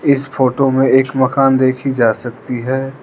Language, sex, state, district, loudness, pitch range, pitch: Hindi, male, Arunachal Pradesh, Lower Dibang Valley, -14 LUFS, 130-135 Hz, 130 Hz